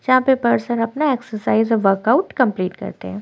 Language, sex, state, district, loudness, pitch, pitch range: Hindi, female, Chhattisgarh, Korba, -18 LUFS, 230 Hz, 210-255 Hz